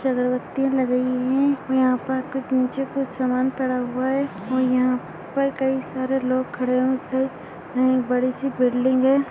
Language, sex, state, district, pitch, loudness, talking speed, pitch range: Hindi, female, Chhattisgarh, Sarguja, 260 Hz, -22 LUFS, 170 wpm, 255-265 Hz